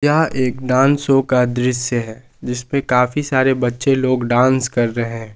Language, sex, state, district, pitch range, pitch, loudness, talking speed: Hindi, male, Jharkhand, Palamu, 125-135 Hz, 125 Hz, -17 LUFS, 170 wpm